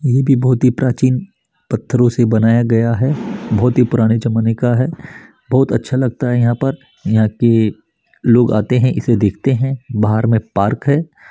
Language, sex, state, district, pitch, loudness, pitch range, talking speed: Hindi, male, Chhattisgarh, Bastar, 120 Hz, -15 LUFS, 115-130 Hz, 180 wpm